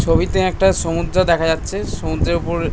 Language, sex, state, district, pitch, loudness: Bengali, male, West Bengal, North 24 Parganas, 165 Hz, -18 LUFS